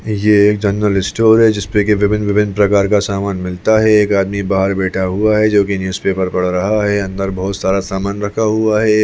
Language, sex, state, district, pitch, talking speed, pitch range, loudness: Hindi, male, Chhattisgarh, Bastar, 100 Hz, 220 wpm, 95-105 Hz, -14 LUFS